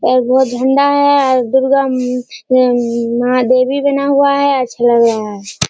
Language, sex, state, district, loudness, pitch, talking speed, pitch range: Hindi, female, Bihar, Kishanganj, -13 LUFS, 255 Hz, 180 wpm, 245-275 Hz